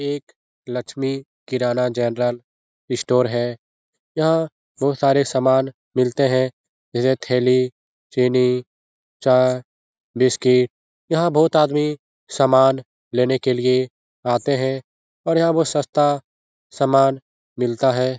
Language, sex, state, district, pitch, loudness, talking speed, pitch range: Hindi, male, Bihar, Jahanabad, 130 Hz, -20 LUFS, 110 wpm, 120-135 Hz